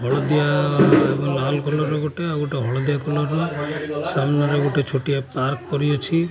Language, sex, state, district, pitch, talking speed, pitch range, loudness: Odia, male, Odisha, Khordha, 145 Hz, 170 wpm, 140-150 Hz, -21 LUFS